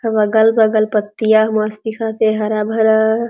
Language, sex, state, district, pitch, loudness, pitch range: Chhattisgarhi, female, Chhattisgarh, Jashpur, 220 Hz, -15 LUFS, 215-220 Hz